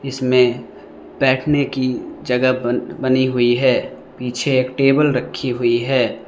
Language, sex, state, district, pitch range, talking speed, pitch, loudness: Hindi, male, Arunachal Pradesh, Lower Dibang Valley, 125-135 Hz, 125 wpm, 130 Hz, -18 LUFS